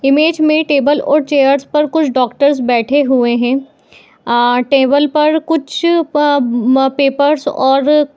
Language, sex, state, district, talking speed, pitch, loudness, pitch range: Hindi, female, Bihar, Madhepura, 155 wpm, 285 Hz, -12 LUFS, 265-300 Hz